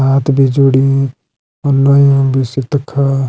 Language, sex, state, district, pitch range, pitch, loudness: Garhwali, male, Uttarakhand, Uttarkashi, 135-140 Hz, 135 Hz, -12 LUFS